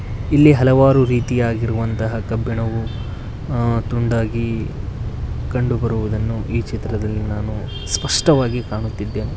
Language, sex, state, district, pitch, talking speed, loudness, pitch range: Kannada, male, Karnataka, Koppal, 115 Hz, 75 wpm, -19 LUFS, 110-120 Hz